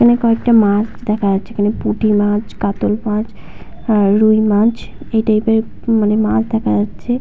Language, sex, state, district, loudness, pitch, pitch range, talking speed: Bengali, female, West Bengal, Purulia, -15 LUFS, 215 Hz, 205-225 Hz, 165 wpm